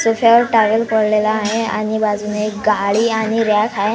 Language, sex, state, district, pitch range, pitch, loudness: Marathi, female, Maharashtra, Washim, 210-225 Hz, 215 Hz, -16 LUFS